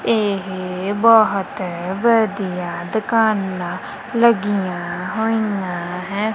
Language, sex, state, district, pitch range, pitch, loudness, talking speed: Punjabi, female, Punjab, Kapurthala, 180-220 Hz, 195 Hz, -19 LUFS, 65 wpm